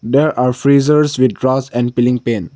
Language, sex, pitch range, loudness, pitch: English, male, 120-140 Hz, -14 LUFS, 130 Hz